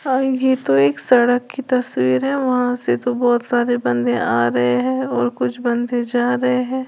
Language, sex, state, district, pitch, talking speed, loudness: Hindi, female, Uttar Pradesh, Lalitpur, 245 Hz, 200 wpm, -18 LUFS